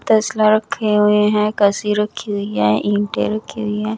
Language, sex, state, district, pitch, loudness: Hindi, female, Chandigarh, Chandigarh, 210 Hz, -17 LUFS